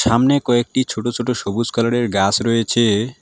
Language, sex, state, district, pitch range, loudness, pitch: Bengali, male, West Bengal, Alipurduar, 115-120 Hz, -18 LUFS, 120 Hz